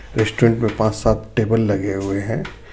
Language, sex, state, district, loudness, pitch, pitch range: Hindi, male, Jharkhand, Ranchi, -19 LUFS, 110 Hz, 105-115 Hz